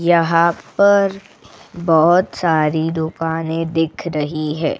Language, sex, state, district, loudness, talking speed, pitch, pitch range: Hindi, female, Goa, North and South Goa, -17 LUFS, 100 wpm, 165 Hz, 160-170 Hz